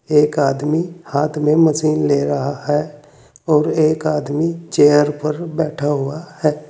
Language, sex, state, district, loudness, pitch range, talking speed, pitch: Hindi, male, Uttar Pradesh, Saharanpur, -17 LUFS, 145-155 Hz, 145 wpm, 150 Hz